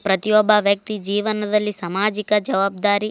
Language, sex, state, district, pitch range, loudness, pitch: Kannada, female, Karnataka, Mysore, 200-215 Hz, -19 LUFS, 210 Hz